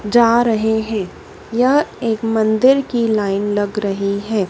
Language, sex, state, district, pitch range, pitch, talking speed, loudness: Hindi, female, Madhya Pradesh, Dhar, 205-235 Hz, 220 Hz, 145 wpm, -17 LUFS